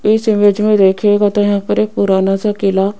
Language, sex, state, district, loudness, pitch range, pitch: Hindi, female, Rajasthan, Jaipur, -13 LUFS, 195-210 Hz, 205 Hz